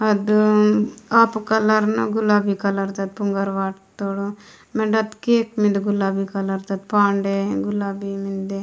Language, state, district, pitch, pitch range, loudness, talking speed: Gondi, Chhattisgarh, Sukma, 200 Hz, 195-215 Hz, -20 LUFS, 130 wpm